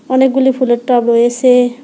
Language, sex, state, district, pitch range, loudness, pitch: Bengali, male, West Bengal, Alipurduar, 240-260 Hz, -12 LUFS, 250 Hz